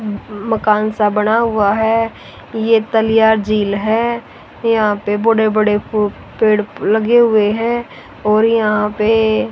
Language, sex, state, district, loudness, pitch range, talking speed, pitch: Hindi, female, Haryana, Rohtak, -15 LUFS, 210-225 Hz, 125 wpm, 215 Hz